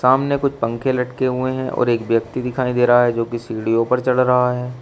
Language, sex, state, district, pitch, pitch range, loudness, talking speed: Hindi, male, Uttar Pradesh, Shamli, 125 Hz, 120-130 Hz, -18 LUFS, 250 wpm